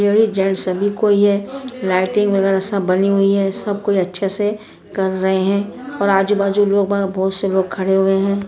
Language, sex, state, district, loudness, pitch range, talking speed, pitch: Hindi, female, Chhattisgarh, Bastar, -17 LUFS, 190-205 Hz, 200 wpm, 195 Hz